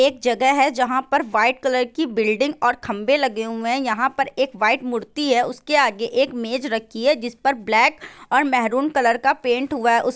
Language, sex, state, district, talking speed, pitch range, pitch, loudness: Hindi, female, Bihar, Gopalganj, 225 wpm, 235-270 Hz, 255 Hz, -20 LUFS